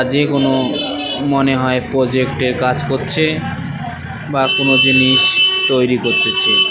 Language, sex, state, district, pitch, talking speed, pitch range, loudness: Bengali, male, West Bengal, Cooch Behar, 135 Hz, 100 wpm, 130-140 Hz, -14 LUFS